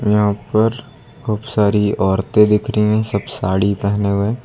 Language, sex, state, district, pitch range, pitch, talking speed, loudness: Hindi, male, Uttar Pradesh, Lucknow, 100-110 Hz, 105 Hz, 160 wpm, -17 LUFS